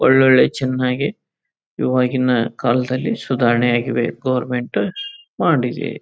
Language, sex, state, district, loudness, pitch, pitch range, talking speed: Kannada, male, Karnataka, Chamarajanagar, -18 LUFS, 130 Hz, 120-130 Hz, 80 wpm